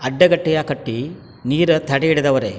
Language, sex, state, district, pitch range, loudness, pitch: Kannada, male, Karnataka, Chamarajanagar, 130-160 Hz, -17 LUFS, 145 Hz